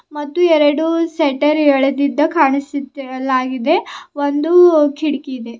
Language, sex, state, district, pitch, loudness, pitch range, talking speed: Kannada, female, Karnataka, Bidar, 290 Hz, -15 LUFS, 275-315 Hz, 75 wpm